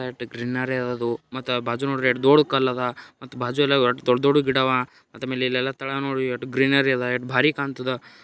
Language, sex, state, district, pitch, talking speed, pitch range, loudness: Kannada, male, Karnataka, Gulbarga, 130 Hz, 205 wpm, 125-135 Hz, -22 LUFS